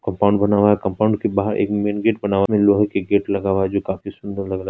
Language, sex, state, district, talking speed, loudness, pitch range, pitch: Hindi, female, Bihar, Araria, 295 wpm, -19 LUFS, 100-105 Hz, 100 Hz